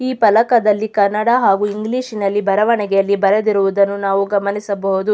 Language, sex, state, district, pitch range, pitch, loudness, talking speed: Kannada, female, Karnataka, Mysore, 200-220 Hz, 205 Hz, -16 LUFS, 115 wpm